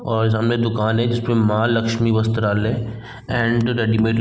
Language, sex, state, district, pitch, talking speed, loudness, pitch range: Hindi, male, Bihar, East Champaran, 115 Hz, 170 wpm, -19 LUFS, 110-115 Hz